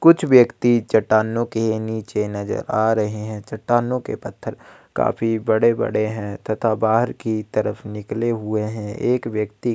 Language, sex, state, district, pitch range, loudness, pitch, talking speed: Hindi, male, Chhattisgarh, Kabirdham, 105-115 Hz, -21 LUFS, 110 Hz, 155 wpm